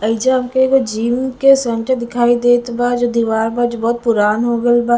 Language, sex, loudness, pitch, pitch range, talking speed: Bhojpuri, female, -15 LUFS, 240 Hz, 230-250 Hz, 155 wpm